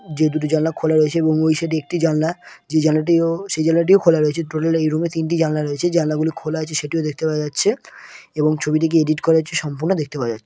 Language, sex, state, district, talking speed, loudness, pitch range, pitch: Bengali, male, West Bengal, Purulia, 230 wpm, -19 LUFS, 155-165 Hz, 160 Hz